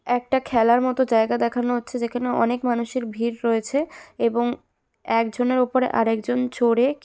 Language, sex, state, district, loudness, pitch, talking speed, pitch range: Bengali, female, West Bengal, Jalpaiguri, -22 LUFS, 245 Hz, 145 wpm, 235-255 Hz